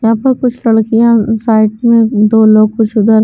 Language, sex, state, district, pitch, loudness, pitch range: Hindi, female, Bihar, West Champaran, 225 Hz, -10 LUFS, 215-230 Hz